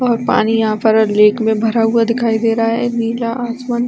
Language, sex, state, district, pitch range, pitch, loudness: Hindi, female, Chhattisgarh, Bastar, 220-235 Hz, 230 Hz, -15 LUFS